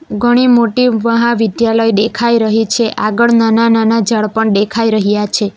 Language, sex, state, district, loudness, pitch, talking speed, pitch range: Gujarati, female, Gujarat, Valsad, -12 LUFS, 225 Hz, 140 wpm, 215-235 Hz